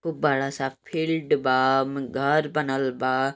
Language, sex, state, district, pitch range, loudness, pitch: Hindi, male, Uttar Pradesh, Deoria, 135-150 Hz, -24 LUFS, 135 Hz